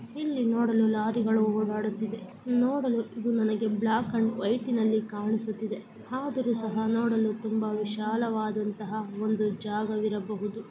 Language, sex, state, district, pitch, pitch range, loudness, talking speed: Kannada, female, Karnataka, Belgaum, 220 Hz, 215-230 Hz, -29 LUFS, 120 wpm